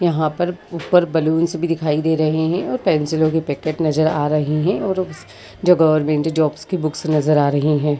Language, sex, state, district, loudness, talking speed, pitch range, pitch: Hindi, female, Uttar Pradesh, Jyotiba Phule Nagar, -18 LUFS, 200 wpm, 150-170 Hz, 155 Hz